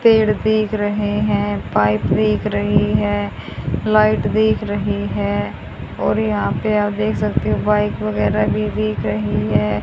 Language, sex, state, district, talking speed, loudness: Hindi, female, Haryana, Charkhi Dadri, 155 wpm, -18 LUFS